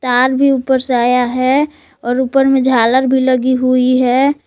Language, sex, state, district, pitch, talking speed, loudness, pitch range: Hindi, female, Jharkhand, Palamu, 260 Hz, 160 wpm, -13 LUFS, 250-265 Hz